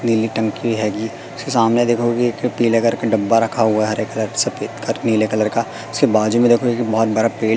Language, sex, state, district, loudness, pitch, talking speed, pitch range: Hindi, male, Madhya Pradesh, Katni, -18 LUFS, 115 Hz, 240 wpm, 110-120 Hz